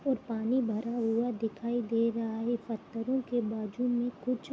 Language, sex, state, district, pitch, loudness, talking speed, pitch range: Hindi, female, Jharkhand, Sahebganj, 235 Hz, -32 LUFS, 170 wpm, 225-245 Hz